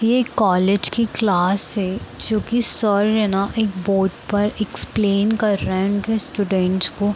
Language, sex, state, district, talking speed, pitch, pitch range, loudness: Hindi, female, Bihar, Darbhanga, 170 wpm, 205 Hz, 195-220 Hz, -19 LUFS